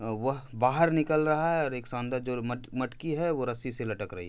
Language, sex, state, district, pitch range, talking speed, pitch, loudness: Hindi, male, Uttar Pradesh, Hamirpur, 120-155 Hz, 250 wpm, 130 Hz, -30 LUFS